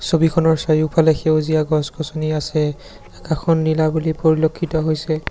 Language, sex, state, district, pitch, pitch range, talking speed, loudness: Assamese, male, Assam, Sonitpur, 155 Hz, 155-160 Hz, 115 wpm, -18 LUFS